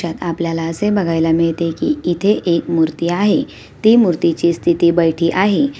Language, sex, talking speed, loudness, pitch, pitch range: Awadhi, female, 155 wpm, -16 LUFS, 170 Hz, 165-195 Hz